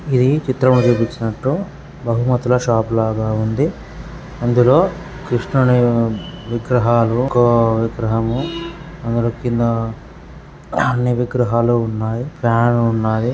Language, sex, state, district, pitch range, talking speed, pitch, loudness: Telugu, male, Andhra Pradesh, Guntur, 115-130 Hz, 85 wpm, 120 Hz, -17 LUFS